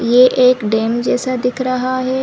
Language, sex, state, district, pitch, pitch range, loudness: Hindi, female, Chhattisgarh, Bilaspur, 255 Hz, 240-255 Hz, -15 LUFS